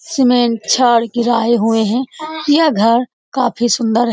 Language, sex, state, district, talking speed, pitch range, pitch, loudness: Hindi, female, Bihar, Supaul, 145 wpm, 230-260 Hz, 240 Hz, -14 LUFS